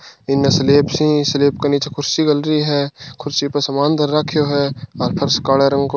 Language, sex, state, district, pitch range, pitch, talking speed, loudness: Marwari, male, Rajasthan, Churu, 140-150 Hz, 145 Hz, 210 wpm, -16 LUFS